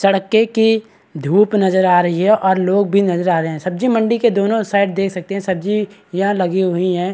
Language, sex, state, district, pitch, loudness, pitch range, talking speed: Hindi, male, Bihar, Kishanganj, 195 Hz, -16 LUFS, 185-210 Hz, 220 wpm